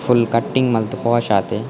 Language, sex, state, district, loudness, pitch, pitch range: Tulu, male, Karnataka, Dakshina Kannada, -18 LUFS, 120 Hz, 115-125 Hz